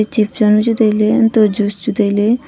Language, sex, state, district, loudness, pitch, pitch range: Wancho, female, Arunachal Pradesh, Longding, -14 LUFS, 215 Hz, 210-225 Hz